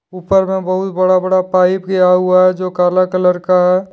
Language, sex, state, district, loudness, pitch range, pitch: Hindi, male, Jharkhand, Deoghar, -13 LUFS, 180-185 Hz, 185 Hz